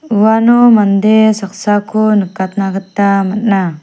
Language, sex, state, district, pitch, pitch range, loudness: Garo, female, Meghalaya, South Garo Hills, 205 Hz, 195-220 Hz, -11 LUFS